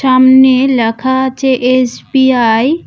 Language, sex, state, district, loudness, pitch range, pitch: Bengali, female, West Bengal, Cooch Behar, -10 LUFS, 250-265 Hz, 260 Hz